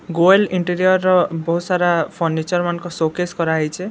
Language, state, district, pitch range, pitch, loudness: Sambalpuri, Odisha, Sambalpur, 165-180 Hz, 175 Hz, -18 LUFS